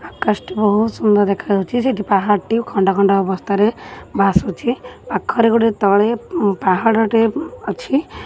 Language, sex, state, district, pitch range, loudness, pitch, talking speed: Odia, female, Odisha, Khordha, 200-230 Hz, -17 LUFS, 210 Hz, 115 wpm